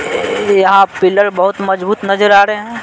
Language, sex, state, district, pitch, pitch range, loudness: Hindi, male, Bihar, Patna, 200 Hz, 195-210 Hz, -11 LUFS